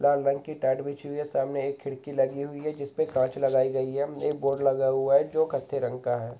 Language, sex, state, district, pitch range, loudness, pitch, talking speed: Hindi, male, Goa, North and South Goa, 135-145 Hz, -27 LUFS, 140 Hz, 265 wpm